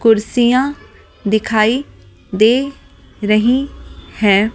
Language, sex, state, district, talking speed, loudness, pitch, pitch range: Hindi, female, Delhi, New Delhi, 65 wpm, -15 LUFS, 225 Hz, 210-250 Hz